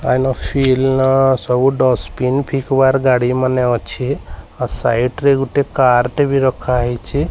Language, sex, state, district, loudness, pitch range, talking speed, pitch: Odia, male, Odisha, Sambalpur, -15 LUFS, 125-135 Hz, 105 wpm, 130 Hz